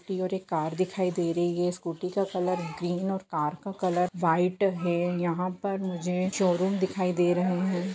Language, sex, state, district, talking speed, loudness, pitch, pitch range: Hindi, female, Jharkhand, Jamtara, 195 wpm, -28 LUFS, 180 Hz, 175-185 Hz